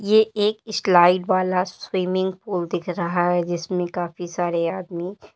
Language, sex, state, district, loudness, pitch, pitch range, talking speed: Hindi, female, Uttar Pradesh, Lalitpur, -22 LUFS, 180 Hz, 175-190 Hz, 155 wpm